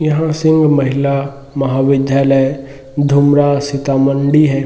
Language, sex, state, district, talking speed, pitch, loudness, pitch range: Hindi, male, Bihar, Sitamarhi, 90 wpm, 140 Hz, -13 LUFS, 135-145 Hz